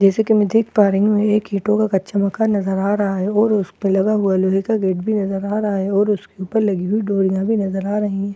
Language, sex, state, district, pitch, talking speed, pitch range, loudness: Hindi, female, Bihar, Katihar, 200 Hz, 295 wpm, 195-210 Hz, -18 LUFS